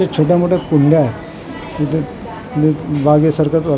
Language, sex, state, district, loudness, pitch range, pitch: Marathi, male, Maharashtra, Mumbai Suburban, -15 LUFS, 150-165 Hz, 155 Hz